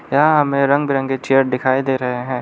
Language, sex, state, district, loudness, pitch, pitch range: Hindi, male, Arunachal Pradesh, Lower Dibang Valley, -17 LUFS, 135 Hz, 130-140 Hz